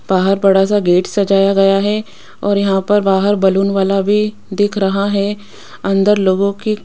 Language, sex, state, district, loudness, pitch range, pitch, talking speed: Hindi, female, Rajasthan, Jaipur, -14 LUFS, 195-205 Hz, 200 Hz, 185 wpm